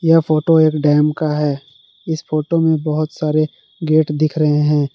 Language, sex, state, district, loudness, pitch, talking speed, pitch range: Hindi, male, Jharkhand, Palamu, -16 LUFS, 155 Hz, 180 wpm, 150-155 Hz